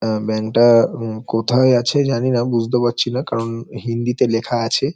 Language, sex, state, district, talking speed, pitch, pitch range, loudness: Bengali, male, West Bengal, Paschim Medinipur, 170 wpm, 120 Hz, 115-125 Hz, -18 LUFS